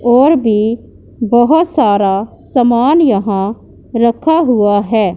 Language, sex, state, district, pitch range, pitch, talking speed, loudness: Hindi, female, Punjab, Pathankot, 210-265 Hz, 235 Hz, 105 wpm, -12 LUFS